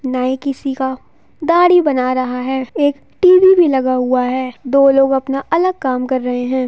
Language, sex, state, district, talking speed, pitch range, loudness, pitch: Hindi, female, Bihar, Jahanabad, 190 wpm, 255-285 Hz, -14 LUFS, 265 Hz